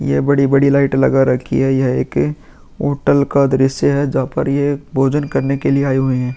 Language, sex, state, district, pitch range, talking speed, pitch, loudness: Hindi, male, Uttar Pradesh, Muzaffarnagar, 130-140 Hz, 205 wpm, 135 Hz, -15 LUFS